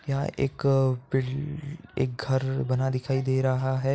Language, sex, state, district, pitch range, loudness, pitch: Hindi, male, Uttar Pradesh, Etah, 130-135 Hz, -27 LUFS, 130 Hz